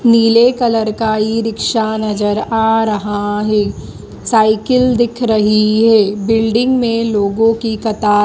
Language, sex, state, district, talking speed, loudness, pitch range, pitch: Hindi, female, Madhya Pradesh, Dhar, 140 wpm, -13 LUFS, 210-230 Hz, 220 Hz